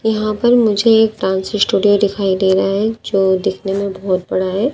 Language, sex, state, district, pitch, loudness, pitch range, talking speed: Hindi, female, Madhya Pradesh, Dhar, 200 Hz, -15 LUFS, 190-220 Hz, 200 wpm